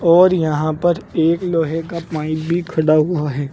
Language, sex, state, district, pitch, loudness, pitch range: Hindi, male, Uttar Pradesh, Saharanpur, 165 Hz, -17 LUFS, 155-170 Hz